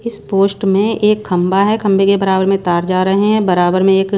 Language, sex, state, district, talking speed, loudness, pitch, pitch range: Hindi, female, Bihar, West Champaran, 245 wpm, -13 LUFS, 195 Hz, 190-205 Hz